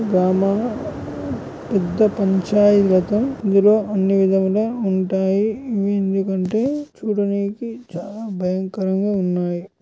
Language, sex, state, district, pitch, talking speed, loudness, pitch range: Telugu, male, Andhra Pradesh, Guntur, 200 Hz, 75 wpm, -19 LUFS, 190-215 Hz